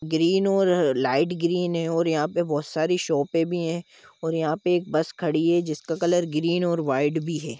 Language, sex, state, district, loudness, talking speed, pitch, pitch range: Hindi, male, Jharkhand, Jamtara, -24 LUFS, 220 wpm, 165 Hz, 155-175 Hz